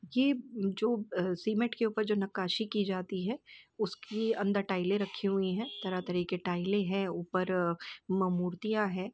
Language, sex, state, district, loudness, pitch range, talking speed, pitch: Hindi, female, Uttar Pradesh, Jalaun, -33 LUFS, 185-215 Hz, 165 wpm, 195 Hz